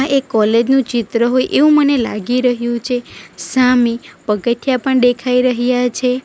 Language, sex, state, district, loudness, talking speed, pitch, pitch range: Gujarati, female, Gujarat, Valsad, -15 LUFS, 155 wpm, 250 Hz, 235-260 Hz